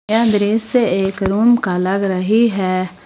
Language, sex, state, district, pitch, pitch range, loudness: Hindi, female, Jharkhand, Palamu, 200 Hz, 190-225 Hz, -16 LUFS